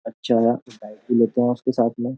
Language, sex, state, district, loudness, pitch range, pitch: Hindi, male, Uttar Pradesh, Jyotiba Phule Nagar, -21 LUFS, 115-125 Hz, 120 Hz